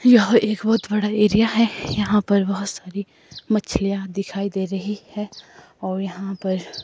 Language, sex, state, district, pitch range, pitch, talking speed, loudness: Hindi, female, Himachal Pradesh, Shimla, 195-215 Hz, 200 Hz, 160 wpm, -21 LUFS